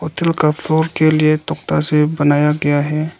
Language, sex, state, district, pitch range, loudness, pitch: Hindi, male, Arunachal Pradesh, Lower Dibang Valley, 150-155 Hz, -15 LUFS, 155 Hz